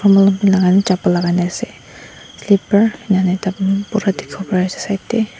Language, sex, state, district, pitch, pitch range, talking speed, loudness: Nagamese, female, Nagaland, Dimapur, 195 Hz, 185-200 Hz, 155 wpm, -16 LUFS